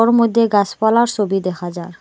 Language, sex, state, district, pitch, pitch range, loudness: Bengali, female, Assam, Hailakandi, 205 Hz, 185-230 Hz, -16 LUFS